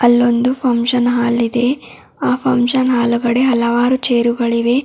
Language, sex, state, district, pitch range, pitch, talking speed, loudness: Kannada, female, Karnataka, Bidar, 235-250 Hz, 245 Hz, 135 wpm, -15 LUFS